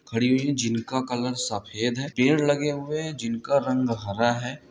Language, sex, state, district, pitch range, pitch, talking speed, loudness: Hindi, male, Bihar, Samastipur, 115-140 Hz, 125 Hz, 190 wpm, -25 LUFS